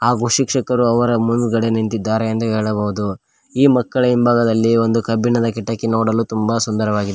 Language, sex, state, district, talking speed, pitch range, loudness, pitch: Kannada, male, Karnataka, Koppal, 135 wpm, 110-120 Hz, -17 LUFS, 115 Hz